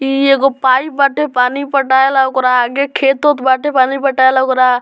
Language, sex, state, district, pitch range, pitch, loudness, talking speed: Bhojpuri, male, Bihar, Muzaffarpur, 260-275 Hz, 265 Hz, -12 LUFS, 225 wpm